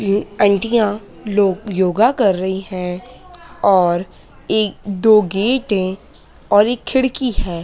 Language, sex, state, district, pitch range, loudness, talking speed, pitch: Hindi, female, Madhya Pradesh, Dhar, 190-230 Hz, -17 LUFS, 125 wpm, 205 Hz